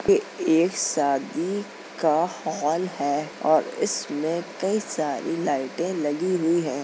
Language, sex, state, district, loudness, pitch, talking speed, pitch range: Hindi, female, Uttar Pradesh, Jalaun, -25 LUFS, 165 Hz, 125 wpm, 150-185 Hz